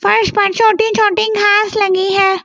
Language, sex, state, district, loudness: Hindi, female, Delhi, New Delhi, -12 LUFS